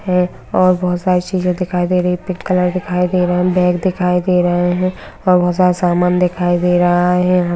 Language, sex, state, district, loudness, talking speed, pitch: Hindi, female, Bihar, Araria, -15 LUFS, 220 wpm, 180 Hz